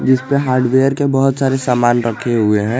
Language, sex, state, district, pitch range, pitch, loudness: Hindi, male, Jharkhand, Garhwa, 120-135 Hz, 130 Hz, -15 LUFS